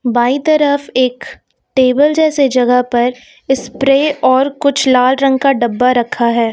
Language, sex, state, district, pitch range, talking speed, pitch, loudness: Hindi, female, Uttar Pradesh, Lucknow, 250-280 Hz, 145 wpm, 260 Hz, -13 LUFS